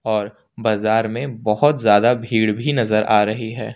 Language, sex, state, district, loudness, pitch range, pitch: Hindi, male, Jharkhand, Ranchi, -18 LUFS, 110-120 Hz, 110 Hz